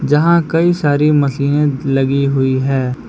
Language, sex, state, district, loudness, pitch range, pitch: Hindi, male, Jharkhand, Palamu, -14 LUFS, 135-150 Hz, 140 Hz